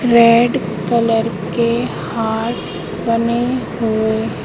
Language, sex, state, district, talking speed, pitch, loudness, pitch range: Hindi, female, Madhya Pradesh, Katni, 80 wpm, 230 Hz, -17 LUFS, 220-235 Hz